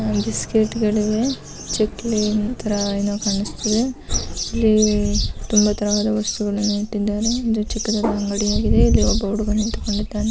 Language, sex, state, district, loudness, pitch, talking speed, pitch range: Kannada, female, Karnataka, Mysore, -20 LUFS, 210 Hz, 100 wpm, 205-220 Hz